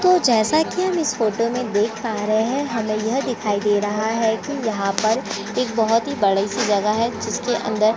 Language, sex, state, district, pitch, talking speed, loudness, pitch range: Hindi, female, Chhattisgarh, Korba, 225 Hz, 205 wpm, -20 LUFS, 215-245 Hz